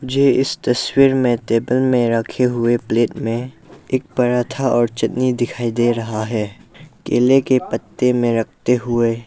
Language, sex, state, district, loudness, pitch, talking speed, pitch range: Hindi, male, Arunachal Pradesh, Lower Dibang Valley, -18 LUFS, 120 Hz, 155 wpm, 115-130 Hz